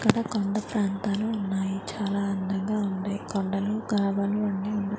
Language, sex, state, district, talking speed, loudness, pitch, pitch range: Telugu, female, Andhra Pradesh, Manyam, 145 wpm, -28 LUFS, 200 Hz, 195-210 Hz